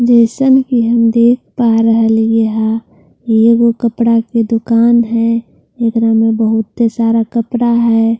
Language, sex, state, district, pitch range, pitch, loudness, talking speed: Hindi, female, Bihar, Katihar, 225-235 Hz, 230 Hz, -12 LUFS, 140 wpm